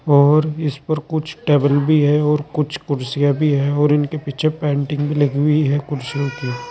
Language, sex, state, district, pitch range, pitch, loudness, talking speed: Hindi, male, Uttar Pradesh, Saharanpur, 140-150 Hz, 145 Hz, -18 LUFS, 195 wpm